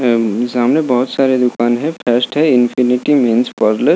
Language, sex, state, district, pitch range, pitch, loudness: Hindi, male, Bihar, Gaya, 120-135 Hz, 125 Hz, -14 LUFS